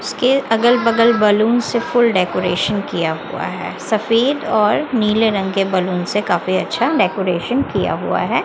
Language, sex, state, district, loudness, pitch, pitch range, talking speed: Hindi, female, Chhattisgarh, Raipur, -17 LUFS, 215 Hz, 185-235 Hz, 165 wpm